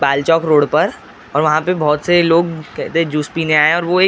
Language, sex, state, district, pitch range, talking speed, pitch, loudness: Hindi, male, Maharashtra, Gondia, 150-170 Hz, 235 wpm, 160 Hz, -15 LUFS